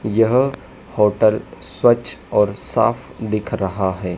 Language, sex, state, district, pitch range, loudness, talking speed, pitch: Hindi, male, Madhya Pradesh, Dhar, 100-120 Hz, -19 LUFS, 115 wpm, 110 Hz